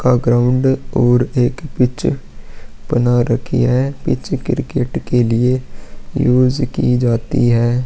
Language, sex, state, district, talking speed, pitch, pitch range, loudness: Hindi, male, Chhattisgarh, Korba, 120 wpm, 125 Hz, 120-130 Hz, -16 LUFS